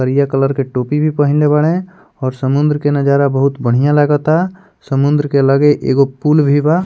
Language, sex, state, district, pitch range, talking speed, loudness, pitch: Bhojpuri, male, Bihar, Muzaffarpur, 135-150 Hz, 185 wpm, -14 LUFS, 145 Hz